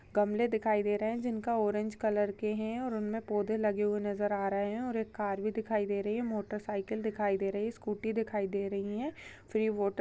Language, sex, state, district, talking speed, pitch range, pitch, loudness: Hindi, female, Chhattisgarh, Bastar, 240 wpm, 205-220 Hz, 210 Hz, -33 LUFS